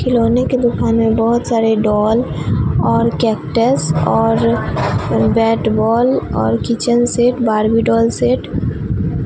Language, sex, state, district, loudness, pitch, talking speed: Hindi, female, Bihar, Katihar, -15 LUFS, 225 Hz, 125 wpm